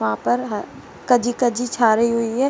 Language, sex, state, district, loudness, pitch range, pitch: Hindi, female, Jharkhand, Sahebganj, -19 LUFS, 220-245 Hz, 235 Hz